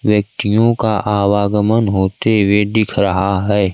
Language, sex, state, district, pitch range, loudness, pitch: Hindi, male, Bihar, Kaimur, 100-110 Hz, -15 LUFS, 105 Hz